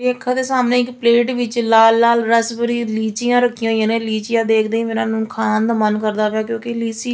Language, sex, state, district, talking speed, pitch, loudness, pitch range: Punjabi, female, Punjab, Fazilka, 225 wpm, 230 Hz, -17 LUFS, 220-240 Hz